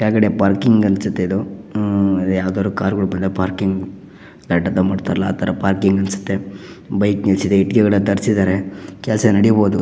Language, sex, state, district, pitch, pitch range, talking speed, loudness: Kannada, male, Karnataka, Shimoga, 95 Hz, 95-100 Hz, 120 wpm, -17 LUFS